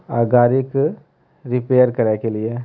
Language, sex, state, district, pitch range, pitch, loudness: Hindi, male, Bihar, Begusarai, 115-130 Hz, 125 Hz, -17 LUFS